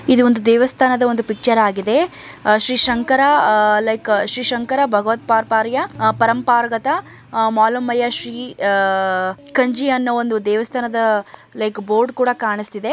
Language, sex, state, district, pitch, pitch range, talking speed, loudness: Kannada, male, Karnataka, Mysore, 230 Hz, 215-250 Hz, 80 wpm, -17 LUFS